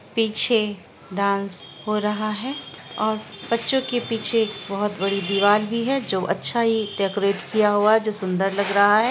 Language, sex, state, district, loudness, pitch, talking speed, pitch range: Hindi, female, Bihar, Araria, -22 LUFS, 210 Hz, 180 wpm, 200-225 Hz